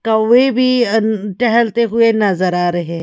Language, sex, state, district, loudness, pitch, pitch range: Hindi, female, Haryana, Charkhi Dadri, -14 LUFS, 225 Hz, 195-235 Hz